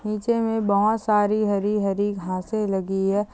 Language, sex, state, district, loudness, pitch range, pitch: Hindi, female, Chhattisgarh, Kabirdham, -23 LUFS, 195-215 Hz, 205 Hz